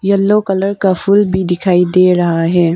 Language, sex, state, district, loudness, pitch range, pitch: Hindi, female, Arunachal Pradesh, Longding, -12 LUFS, 175-200 Hz, 185 Hz